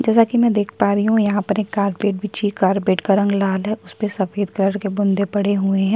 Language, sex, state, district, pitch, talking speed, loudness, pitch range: Hindi, female, Chhattisgarh, Kabirdham, 205 Hz, 270 wpm, -19 LUFS, 195-210 Hz